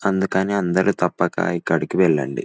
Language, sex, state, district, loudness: Telugu, male, Telangana, Nalgonda, -20 LUFS